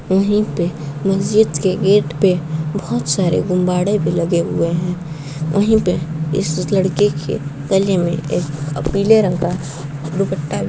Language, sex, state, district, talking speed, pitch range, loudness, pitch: Hindi, female, Uttar Pradesh, Etah, 150 wpm, 155-195 Hz, -17 LUFS, 175 Hz